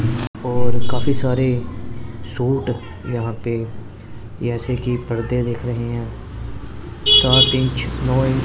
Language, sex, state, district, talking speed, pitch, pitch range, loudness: Hindi, male, Punjab, Pathankot, 120 wpm, 120 Hz, 115-125 Hz, -19 LUFS